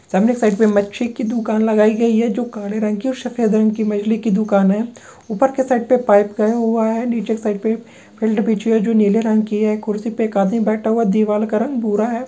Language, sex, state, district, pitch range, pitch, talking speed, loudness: Marwari, female, Rajasthan, Nagaur, 215-230 Hz, 220 Hz, 255 wpm, -17 LUFS